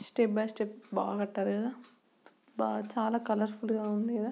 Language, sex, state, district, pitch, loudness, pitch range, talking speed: Telugu, female, Andhra Pradesh, Srikakulam, 220 Hz, -33 LUFS, 210-230 Hz, 180 wpm